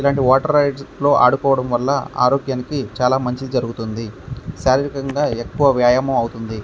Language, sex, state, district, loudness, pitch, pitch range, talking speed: Telugu, male, Andhra Pradesh, Krishna, -18 LUFS, 130 Hz, 125-140 Hz, 125 wpm